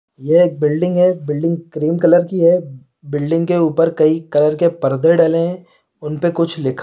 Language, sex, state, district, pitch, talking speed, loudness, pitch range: Hindi, male, Chhattisgarh, Bilaspur, 165 Hz, 185 wpm, -15 LUFS, 150-175 Hz